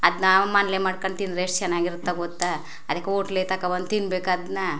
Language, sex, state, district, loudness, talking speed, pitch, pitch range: Kannada, female, Karnataka, Chamarajanagar, -24 LUFS, 175 wpm, 185 Hz, 180-190 Hz